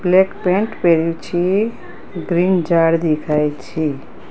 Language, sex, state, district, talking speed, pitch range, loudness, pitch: Gujarati, female, Gujarat, Gandhinagar, 110 wpm, 155-185 Hz, -17 LUFS, 170 Hz